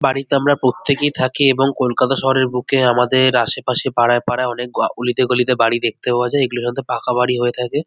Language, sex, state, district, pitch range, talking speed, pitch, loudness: Bengali, male, West Bengal, North 24 Parganas, 125-135 Hz, 185 wpm, 125 Hz, -17 LUFS